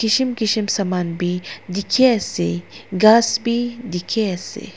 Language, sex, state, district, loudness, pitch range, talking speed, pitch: Nagamese, female, Nagaland, Dimapur, -19 LUFS, 180-230 Hz, 125 wpm, 210 Hz